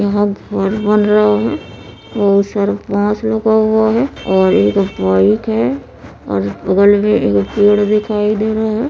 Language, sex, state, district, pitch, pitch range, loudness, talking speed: Maithili, female, Bihar, Supaul, 205 Hz, 185-215 Hz, -14 LUFS, 160 wpm